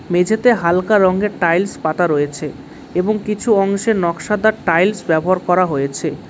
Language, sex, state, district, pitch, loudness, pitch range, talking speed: Bengali, male, West Bengal, Cooch Behar, 180 Hz, -16 LUFS, 165-210 Hz, 135 wpm